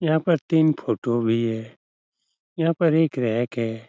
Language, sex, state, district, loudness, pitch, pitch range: Hindi, male, Uttar Pradesh, Etah, -22 LUFS, 125 Hz, 115-160 Hz